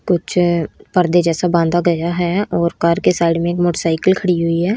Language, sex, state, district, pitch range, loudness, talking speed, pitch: Hindi, female, Haryana, Rohtak, 170-180 Hz, -16 LUFS, 200 wpm, 175 Hz